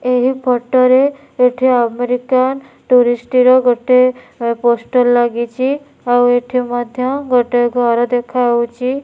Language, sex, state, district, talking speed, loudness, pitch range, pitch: Odia, female, Odisha, Nuapada, 115 wpm, -14 LUFS, 245-255 Hz, 250 Hz